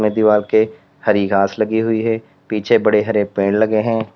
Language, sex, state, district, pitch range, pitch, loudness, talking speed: Hindi, male, Uttar Pradesh, Lalitpur, 105-110 Hz, 110 Hz, -17 LUFS, 190 wpm